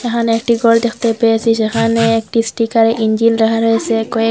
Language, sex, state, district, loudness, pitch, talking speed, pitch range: Bengali, female, Assam, Hailakandi, -14 LUFS, 225 Hz, 165 wpm, 225-230 Hz